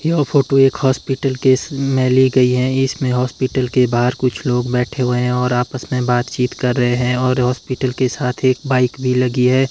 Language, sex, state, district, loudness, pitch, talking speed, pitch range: Hindi, male, Himachal Pradesh, Shimla, -17 LUFS, 130 Hz, 210 wpm, 125-130 Hz